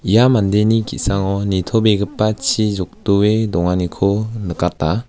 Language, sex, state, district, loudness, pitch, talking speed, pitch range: Garo, male, Meghalaya, West Garo Hills, -17 LUFS, 100 Hz, 95 wpm, 95-110 Hz